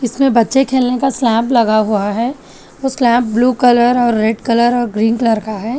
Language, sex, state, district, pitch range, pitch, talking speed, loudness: Hindi, female, Telangana, Hyderabad, 225-250 Hz, 240 Hz, 205 wpm, -14 LUFS